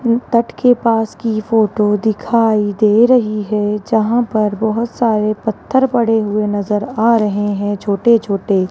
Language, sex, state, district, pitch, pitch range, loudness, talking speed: Hindi, female, Rajasthan, Jaipur, 220 Hz, 210-235 Hz, -15 LUFS, 150 wpm